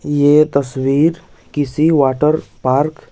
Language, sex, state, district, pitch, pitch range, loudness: Hindi, male, Bihar, West Champaran, 145 Hz, 140-155 Hz, -15 LUFS